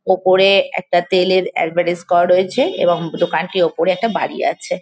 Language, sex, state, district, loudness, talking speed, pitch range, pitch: Bengali, female, West Bengal, Kolkata, -16 LUFS, 160 wpm, 175-185 Hz, 180 Hz